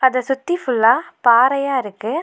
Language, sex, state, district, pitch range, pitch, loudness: Tamil, female, Tamil Nadu, Nilgiris, 235-275 Hz, 260 Hz, -17 LUFS